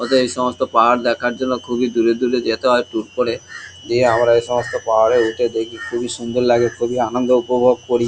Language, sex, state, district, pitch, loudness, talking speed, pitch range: Bengali, male, West Bengal, Kolkata, 120 Hz, -17 LUFS, 200 wpm, 120-125 Hz